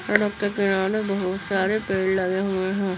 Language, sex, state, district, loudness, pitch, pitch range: Hindi, female, Bihar, Gaya, -23 LUFS, 195 Hz, 190-205 Hz